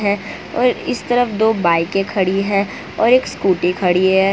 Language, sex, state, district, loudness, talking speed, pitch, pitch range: Hindi, female, Gujarat, Valsad, -17 LUFS, 165 wpm, 195 Hz, 190-220 Hz